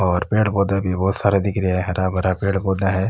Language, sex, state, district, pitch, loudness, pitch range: Rajasthani, male, Rajasthan, Nagaur, 95 Hz, -20 LUFS, 95-100 Hz